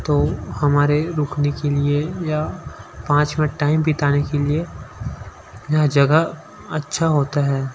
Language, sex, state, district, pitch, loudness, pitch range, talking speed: Hindi, male, Chhattisgarh, Sukma, 145 Hz, -19 LUFS, 145-155 Hz, 130 wpm